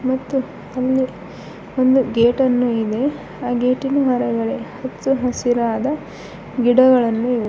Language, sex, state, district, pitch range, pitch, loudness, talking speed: Kannada, female, Karnataka, Bidar, 230-260 Hz, 250 Hz, -18 LUFS, 95 wpm